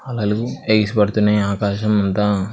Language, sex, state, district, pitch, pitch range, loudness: Telugu, male, Andhra Pradesh, Krishna, 105 Hz, 105-110 Hz, -18 LUFS